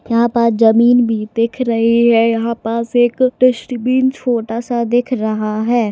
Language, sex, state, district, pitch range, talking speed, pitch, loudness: Hindi, female, Maharashtra, Solapur, 230-245 Hz, 150 wpm, 235 Hz, -15 LUFS